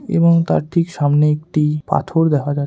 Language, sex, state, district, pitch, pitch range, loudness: Bengali, male, West Bengal, Kolkata, 155 Hz, 150-170 Hz, -16 LUFS